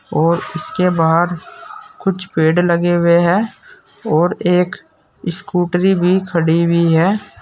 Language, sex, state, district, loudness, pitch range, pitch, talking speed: Hindi, male, Uttar Pradesh, Saharanpur, -15 LUFS, 170-190 Hz, 175 Hz, 120 wpm